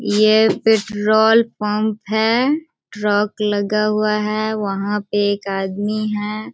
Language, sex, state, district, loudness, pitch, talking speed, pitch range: Hindi, female, Bihar, Sitamarhi, -18 LUFS, 210 Hz, 120 wpm, 205-220 Hz